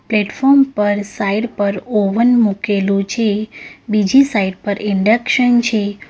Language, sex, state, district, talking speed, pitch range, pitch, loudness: Gujarati, female, Gujarat, Valsad, 120 wpm, 200-235 Hz, 210 Hz, -15 LUFS